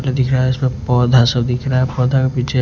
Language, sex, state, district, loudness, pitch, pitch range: Hindi, male, Punjab, Kapurthala, -16 LUFS, 130 Hz, 125-130 Hz